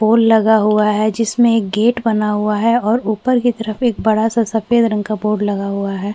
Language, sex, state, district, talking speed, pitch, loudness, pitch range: Hindi, female, Chhattisgarh, Korba, 235 wpm, 220 Hz, -15 LUFS, 210-230 Hz